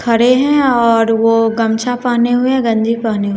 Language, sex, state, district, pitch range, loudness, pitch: Hindi, female, Bihar, West Champaran, 225-245 Hz, -13 LUFS, 230 Hz